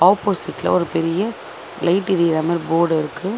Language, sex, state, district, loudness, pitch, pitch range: Tamil, female, Tamil Nadu, Chennai, -19 LUFS, 175 Hz, 165-195 Hz